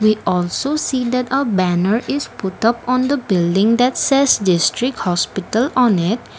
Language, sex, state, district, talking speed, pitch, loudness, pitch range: English, female, Assam, Kamrup Metropolitan, 170 wpm, 230 Hz, -17 LUFS, 185-255 Hz